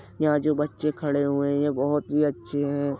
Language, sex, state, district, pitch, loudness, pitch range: Hindi, male, Uttar Pradesh, Jyotiba Phule Nagar, 145 Hz, -25 LUFS, 140-150 Hz